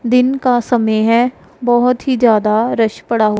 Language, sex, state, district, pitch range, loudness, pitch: Hindi, female, Punjab, Pathankot, 220-250 Hz, -14 LUFS, 240 Hz